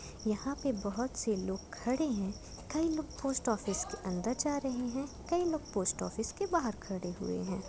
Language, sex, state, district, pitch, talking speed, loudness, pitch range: Hindi, female, Jharkhand, Jamtara, 245 Hz, 195 wpm, -35 LUFS, 200-285 Hz